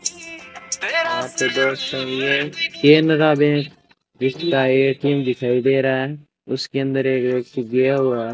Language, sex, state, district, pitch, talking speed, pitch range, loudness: Hindi, male, Rajasthan, Bikaner, 135 Hz, 110 wpm, 130-150 Hz, -19 LUFS